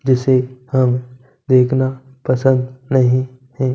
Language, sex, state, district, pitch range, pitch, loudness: Hindi, male, Punjab, Kapurthala, 125-130 Hz, 130 Hz, -17 LUFS